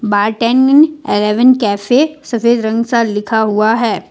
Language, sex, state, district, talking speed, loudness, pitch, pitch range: Hindi, female, Jharkhand, Ranchi, 145 wpm, -12 LUFS, 230 Hz, 210-255 Hz